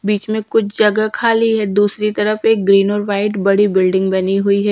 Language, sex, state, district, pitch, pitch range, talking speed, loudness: Hindi, female, Bihar, Patna, 205 Hz, 200-215 Hz, 215 wpm, -15 LUFS